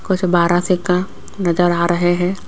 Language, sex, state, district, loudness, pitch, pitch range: Hindi, female, Rajasthan, Jaipur, -16 LUFS, 175 Hz, 175-185 Hz